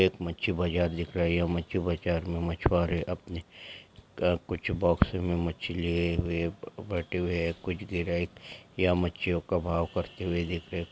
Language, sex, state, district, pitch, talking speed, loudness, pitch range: Hindi, male, Andhra Pradesh, Chittoor, 85 Hz, 170 wpm, -30 LUFS, 85-90 Hz